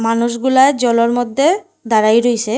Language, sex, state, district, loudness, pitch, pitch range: Bengali, female, Assam, Hailakandi, -14 LUFS, 240 Hz, 230-265 Hz